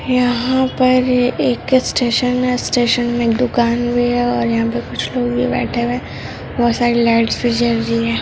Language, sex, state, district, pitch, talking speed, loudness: Hindi, male, Bihar, Gopalganj, 240 Hz, 190 wpm, -16 LUFS